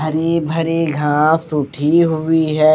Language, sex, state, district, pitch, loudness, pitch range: Hindi, male, Odisha, Malkangiri, 155 Hz, -16 LUFS, 155-165 Hz